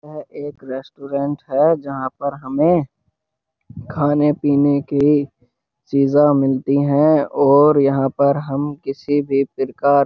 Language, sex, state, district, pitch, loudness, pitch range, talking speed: Hindi, male, Uttar Pradesh, Jyotiba Phule Nagar, 140 Hz, -17 LUFS, 135-145 Hz, 125 wpm